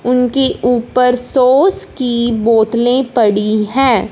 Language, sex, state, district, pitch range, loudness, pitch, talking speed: Hindi, female, Punjab, Fazilka, 230-255 Hz, -13 LUFS, 245 Hz, 100 wpm